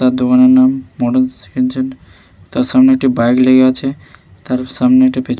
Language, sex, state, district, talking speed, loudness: Bengali, male, West Bengal, Malda, 190 wpm, -12 LUFS